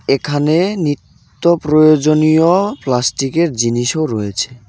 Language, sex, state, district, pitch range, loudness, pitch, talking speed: Bengali, male, West Bengal, Cooch Behar, 125-160 Hz, -14 LUFS, 150 Hz, 75 wpm